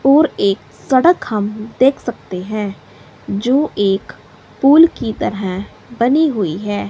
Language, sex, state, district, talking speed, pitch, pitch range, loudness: Hindi, female, Himachal Pradesh, Shimla, 130 wpm, 215 Hz, 195-275 Hz, -16 LUFS